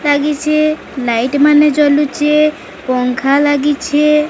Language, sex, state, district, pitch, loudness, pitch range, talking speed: Odia, female, Odisha, Sambalpur, 295 Hz, -13 LUFS, 280-300 Hz, 95 wpm